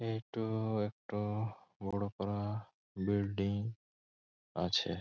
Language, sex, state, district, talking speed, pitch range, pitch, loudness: Bengali, male, West Bengal, Malda, 70 wpm, 100-110 Hz, 100 Hz, -38 LUFS